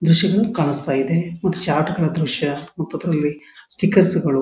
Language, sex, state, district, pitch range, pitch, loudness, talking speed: Kannada, male, Karnataka, Dharwad, 150-180 Hz, 160 Hz, -19 LUFS, 120 wpm